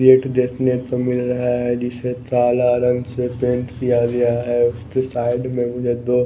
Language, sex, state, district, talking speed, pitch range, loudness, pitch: Hindi, male, Bihar, West Champaran, 180 wpm, 120-125 Hz, -19 LUFS, 125 Hz